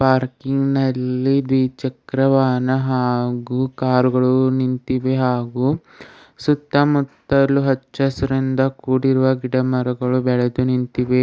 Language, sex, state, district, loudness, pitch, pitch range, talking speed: Kannada, male, Karnataka, Bidar, -19 LUFS, 130 Hz, 125-135 Hz, 95 wpm